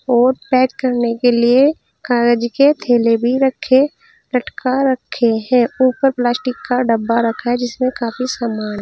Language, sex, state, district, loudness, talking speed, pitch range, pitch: Hindi, female, Uttar Pradesh, Saharanpur, -16 LUFS, 150 wpm, 235-260 Hz, 245 Hz